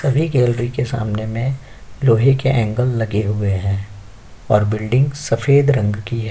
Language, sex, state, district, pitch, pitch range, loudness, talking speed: Hindi, male, Uttar Pradesh, Jyotiba Phule Nagar, 115 Hz, 105-135 Hz, -18 LUFS, 160 wpm